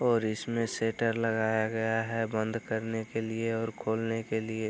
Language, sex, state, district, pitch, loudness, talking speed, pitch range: Hindi, male, Bihar, Araria, 115 Hz, -31 LUFS, 180 wpm, 110-115 Hz